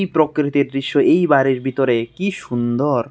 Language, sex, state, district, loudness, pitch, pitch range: Bengali, male, Tripura, West Tripura, -18 LUFS, 135 Hz, 130-150 Hz